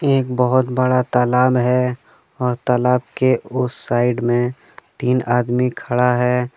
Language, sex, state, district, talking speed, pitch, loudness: Hindi, male, Jharkhand, Deoghar, 135 wpm, 125 Hz, -18 LUFS